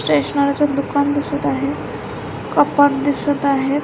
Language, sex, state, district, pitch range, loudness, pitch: Marathi, female, Maharashtra, Pune, 275-285 Hz, -18 LUFS, 285 Hz